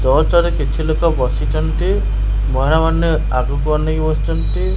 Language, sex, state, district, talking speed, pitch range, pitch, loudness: Odia, male, Odisha, Khordha, 100 wpm, 125-160 Hz, 150 Hz, -17 LUFS